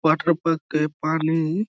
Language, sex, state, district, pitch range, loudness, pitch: Bengali, male, West Bengal, Malda, 155-165 Hz, -22 LUFS, 160 Hz